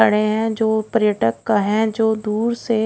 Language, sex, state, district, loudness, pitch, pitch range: Hindi, female, Odisha, Khordha, -19 LUFS, 220 Hz, 210-225 Hz